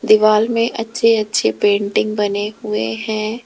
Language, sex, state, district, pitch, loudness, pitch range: Hindi, female, Uttar Pradesh, Lalitpur, 215 Hz, -17 LUFS, 205-225 Hz